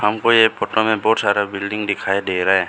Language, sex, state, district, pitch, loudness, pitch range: Hindi, male, Arunachal Pradesh, Lower Dibang Valley, 105 Hz, -17 LUFS, 95-110 Hz